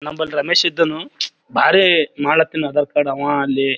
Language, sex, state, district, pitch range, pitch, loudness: Kannada, male, Karnataka, Gulbarga, 145-160 Hz, 150 Hz, -17 LUFS